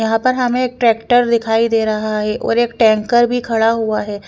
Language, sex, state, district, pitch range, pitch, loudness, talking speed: Hindi, female, Chandigarh, Chandigarh, 220-240 Hz, 225 Hz, -15 LUFS, 240 wpm